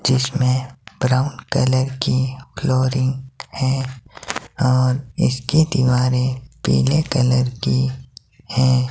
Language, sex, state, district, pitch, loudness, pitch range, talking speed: Hindi, male, Himachal Pradesh, Shimla, 130 Hz, -19 LUFS, 125-130 Hz, 90 wpm